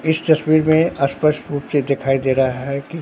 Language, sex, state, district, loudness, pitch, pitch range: Hindi, male, Bihar, Katihar, -18 LUFS, 145 Hz, 140-155 Hz